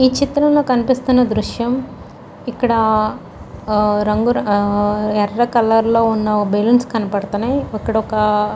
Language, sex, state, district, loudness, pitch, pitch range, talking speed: Telugu, female, Andhra Pradesh, Chittoor, -16 LUFS, 225 Hz, 210-245 Hz, 90 wpm